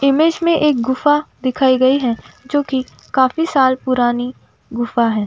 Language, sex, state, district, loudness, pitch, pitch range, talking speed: Hindi, female, Uttar Pradesh, Budaun, -16 LUFS, 260 Hz, 245-290 Hz, 160 wpm